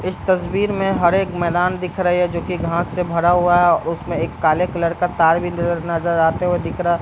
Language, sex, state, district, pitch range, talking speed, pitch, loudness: Hindi, male, Bihar, Bhagalpur, 170-180 Hz, 250 wpm, 175 Hz, -18 LUFS